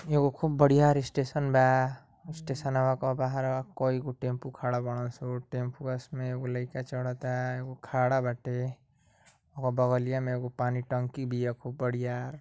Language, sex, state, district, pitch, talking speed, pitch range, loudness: Bhojpuri, male, Uttar Pradesh, Ghazipur, 130 Hz, 155 wpm, 125-135 Hz, -30 LUFS